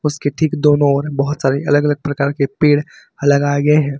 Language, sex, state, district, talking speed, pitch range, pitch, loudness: Hindi, male, Uttar Pradesh, Lucknow, 210 wpm, 140-150 Hz, 145 Hz, -16 LUFS